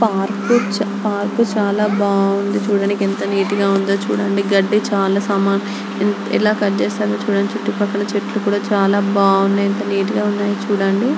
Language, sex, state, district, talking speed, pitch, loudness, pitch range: Telugu, female, Andhra Pradesh, Anantapur, 135 wpm, 205 Hz, -17 LUFS, 200-210 Hz